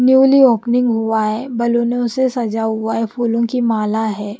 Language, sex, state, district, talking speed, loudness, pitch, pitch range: Hindi, female, Bihar, West Champaran, 175 wpm, -16 LUFS, 235 Hz, 220-245 Hz